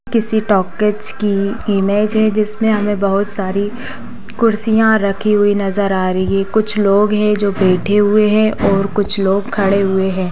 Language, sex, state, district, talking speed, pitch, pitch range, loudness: Hindi, female, Bihar, Sitamarhi, 165 wpm, 205 Hz, 195-215 Hz, -15 LUFS